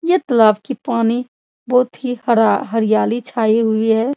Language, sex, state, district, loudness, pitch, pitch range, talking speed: Hindi, female, Bihar, Supaul, -16 LUFS, 230 Hz, 220-250 Hz, 160 wpm